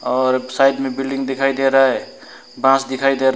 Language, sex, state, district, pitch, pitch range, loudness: Hindi, male, West Bengal, Alipurduar, 135 Hz, 130-135 Hz, -17 LUFS